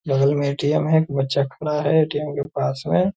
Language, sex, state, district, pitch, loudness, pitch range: Hindi, male, Bihar, Purnia, 145 Hz, -21 LUFS, 140-155 Hz